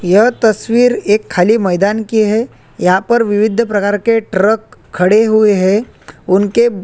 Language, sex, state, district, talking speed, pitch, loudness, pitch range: Hindi, male, Chhattisgarh, Korba, 150 wpm, 215 Hz, -12 LUFS, 200-225 Hz